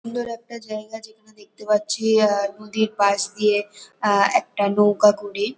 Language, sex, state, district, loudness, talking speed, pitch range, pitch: Bengali, female, West Bengal, Kolkata, -21 LUFS, 160 wpm, 205-220 Hz, 210 Hz